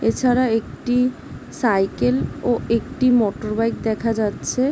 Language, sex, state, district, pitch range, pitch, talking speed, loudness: Bengali, female, West Bengal, Jhargram, 215-250 Hz, 230 Hz, 100 wpm, -20 LUFS